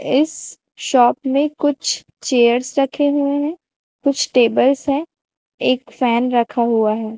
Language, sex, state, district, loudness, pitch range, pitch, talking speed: Hindi, female, Chhattisgarh, Raipur, -17 LUFS, 240-285 Hz, 265 Hz, 135 wpm